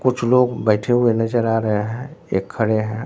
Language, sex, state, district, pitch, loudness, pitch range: Hindi, male, Bihar, Katihar, 115 Hz, -19 LUFS, 110-125 Hz